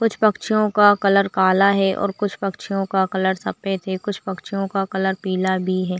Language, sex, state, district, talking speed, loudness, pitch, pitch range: Hindi, female, Chhattisgarh, Bilaspur, 200 wpm, -20 LUFS, 195 Hz, 190-200 Hz